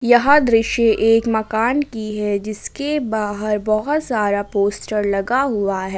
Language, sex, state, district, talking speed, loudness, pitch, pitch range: Hindi, female, Jharkhand, Ranchi, 140 wpm, -18 LUFS, 220 Hz, 210-240 Hz